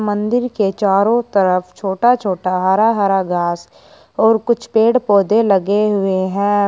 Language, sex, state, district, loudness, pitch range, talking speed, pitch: Hindi, male, Uttar Pradesh, Shamli, -15 LUFS, 190-230 Hz, 145 wpm, 205 Hz